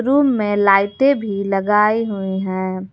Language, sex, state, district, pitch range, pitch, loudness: Hindi, female, Jharkhand, Garhwa, 195-225 Hz, 205 Hz, -17 LUFS